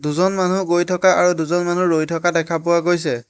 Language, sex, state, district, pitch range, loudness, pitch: Assamese, male, Assam, Hailakandi, 165-180 Hz, -18 LUFS, 175 Hz